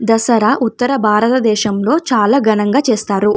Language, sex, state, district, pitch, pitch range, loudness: Telugu, female, Andhra Pradesh, Anantapur, 225 Hz, 210-250 Hz, -13 LUFS